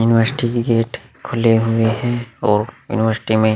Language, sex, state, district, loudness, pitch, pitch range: Hindi, male, Bihar, Vaishali, -18 LUFS, 115 Hz, 110-120 Hz